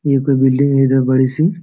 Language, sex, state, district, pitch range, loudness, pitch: Hindi, male, Jharkhand, Jamtara, 130-140 Hz, -14 LUFS, 135 Hz